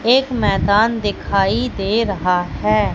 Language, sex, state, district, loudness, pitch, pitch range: Hindi, female, Madhya Pradesh, Katni, -17 LUFS, 210 Hz, 195-230 Hz